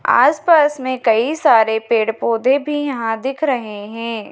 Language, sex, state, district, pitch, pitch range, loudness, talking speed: Hindi, female, Madhya Pradesh, Dhar, 235 Hz, 225-280 Hz, -16 LUFS, 165 wpm